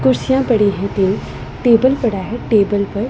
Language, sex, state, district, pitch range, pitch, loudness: Hindi, female, Punjab, Pathankot, 195-240 Hz, 210 Hz, -16 LUFS